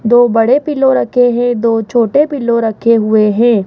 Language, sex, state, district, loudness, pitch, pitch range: Hindi, female, Rajasthan, Jaipur, -11 LUFS, 235 Hz, 225-245 Hz